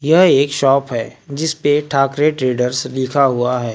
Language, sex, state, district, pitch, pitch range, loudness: Hindi, male, Maharashtra, Gondia, 135 Hz, 125-145 Hz, -16 LUFS